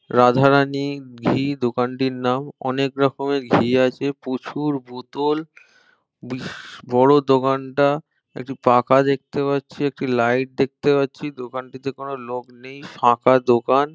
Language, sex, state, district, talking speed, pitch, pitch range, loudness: Bengali, male, West Bengal, Malda, 135 wpm, 135 Hz, 125-140 Hz, -20 LUFS